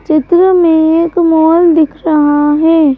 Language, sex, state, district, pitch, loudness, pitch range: Hindi, female, Madhya Pradesh, Bhopal, 320 Hz, -9 LUFS, 305-335 Hz